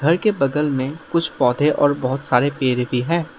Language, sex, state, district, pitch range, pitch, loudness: Hindi, male, Assam, Sonitpur, 130-160 Hz, 145 Hz, -19 LUFS